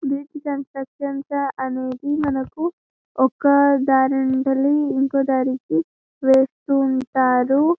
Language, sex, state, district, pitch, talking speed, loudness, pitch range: Telugu, female, Telangana, Karimnagar, 270 Hz, 85 wpm, -20 LUFS, 265-280 Hz